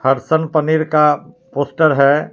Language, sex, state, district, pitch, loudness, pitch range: Hindi, male, Jharkhand, Palamu, 150 Hz, -15 LUFS, 140-160 Hz